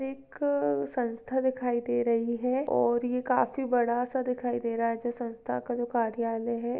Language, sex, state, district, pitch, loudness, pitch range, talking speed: Hindi, female, Maharashtra, Chandrapur, 240 Hz, -29 LUFS, 230-250 Hz, 185 wpm